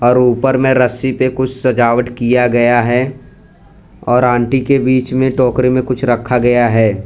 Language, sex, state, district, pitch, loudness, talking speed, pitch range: Hindi, male, Gujarat, Valsad, 125 Hz, -13 LUFS, 180 wpm, 120-130 Hz